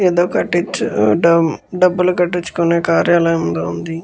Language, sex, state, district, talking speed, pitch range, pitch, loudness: Telugu, male, Andhra Pradesh, Guntur, 105 wpm, 165-175 Hz, 170 Hz, -15 LUFS